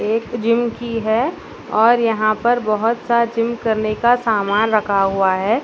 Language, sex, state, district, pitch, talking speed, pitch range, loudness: Hindi, female, Bihar, Saharsa, 225 Hz, 170 wpm, 215-235 Hz, -17 LUFS